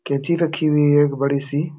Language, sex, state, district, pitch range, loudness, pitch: Hindi, male, Uttar Pradesh, Jalaun, 140-155 Hz, -18 LUFS, 145 Hz